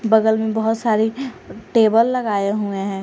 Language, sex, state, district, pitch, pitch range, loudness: Hindi, female, Jharkhand, Garhwa, 220 Hz, 210-225 Hz, -18 LUFS